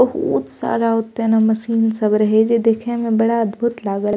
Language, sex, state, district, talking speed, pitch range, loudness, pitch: Maithili, female, Bihar, Purnia, 185 wpm, 220-230 Hz, -17 LUFS, 225 Hz